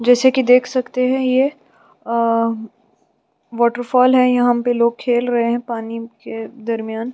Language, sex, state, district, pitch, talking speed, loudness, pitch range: Hindi, female, Chhattisgarh, Sukma, 240 Hz, 145 wpm, -17 LUFS, 230-250 Hz